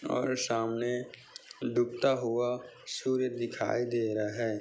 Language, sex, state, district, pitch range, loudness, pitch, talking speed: Hindi, male, Maharashtra, Chandrapur, 115-125 Hz, -32 LUFS, 120 Hz, 115 wpm